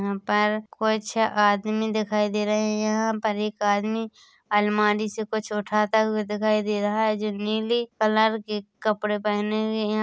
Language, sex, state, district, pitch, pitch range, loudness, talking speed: Hindi, female, Chhattisgarh, Korba, 215 Hz, 210-220 Hz, -24 LUFS, 175 wpm